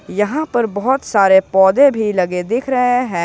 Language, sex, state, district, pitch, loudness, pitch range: Hindi, male, Jharkhand, Ranchi, 220 Hz, -15 LUFS, 190-255 Hz